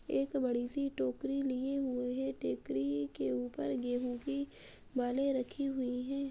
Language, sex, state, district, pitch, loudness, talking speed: Hindi, female, Uttar Pradesh, Muzaffarnagar, 250 Hz, -36 LUFS, 150 wpm